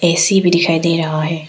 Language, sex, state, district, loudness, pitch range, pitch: Hindi, female, Arunachal Pradesh, Papum Pare, -14 LUFS, 160-175 Hz, 165 Hz